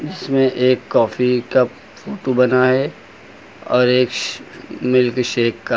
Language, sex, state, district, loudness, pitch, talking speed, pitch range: Hindi, male, Uttar Pradesh, Lucknow, -17 LUFS, 125 Hz, 135 wpm, 125-130 Hz